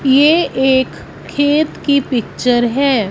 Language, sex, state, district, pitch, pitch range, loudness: Hindi, female, Punjab, Fazilka, 270 Hz, 250-285 Hz, -14 LUFS